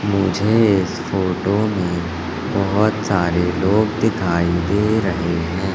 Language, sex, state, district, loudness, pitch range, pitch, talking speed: Hindi, male, Madhya Pradesh, Katni, -18 LUFS, 85-105 Hz, 95 Hz, 115 wpm